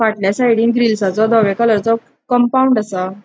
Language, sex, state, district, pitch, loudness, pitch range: Konkani, female, Goa, North and South Goa, 225 Hz, -15 LUFS, 205-235 Hz